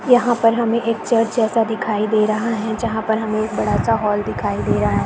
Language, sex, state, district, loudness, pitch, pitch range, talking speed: Hindi, female, Chhattisgarh, Balrampur, -18 LUFS, 220 Hz, 215-230 Hz, 250 wpm